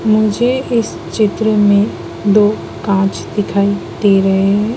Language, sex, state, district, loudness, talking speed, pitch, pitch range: Hindi, female, Madhya Pradesh, Dhar, -14 LUFS, 125 wpm, 205 Hz, 200-215 Hz